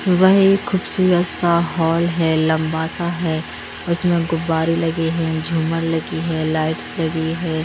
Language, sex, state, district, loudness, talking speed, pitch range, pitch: Hindi, female, Haryana, Rohtak, -19 LUFS, 150 wpm, 160-175 Hz, 165 Hz